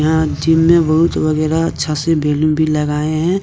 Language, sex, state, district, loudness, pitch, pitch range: Hindi, male, Jharkhand, Deoghar, -15 LUFS, 155 Hz, 155-160 Hz